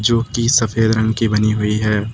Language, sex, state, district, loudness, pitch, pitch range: Hindi, male, Uttar Pradesh, Lucknow, -16 LUFS, 110 Hz, 105-115 Hz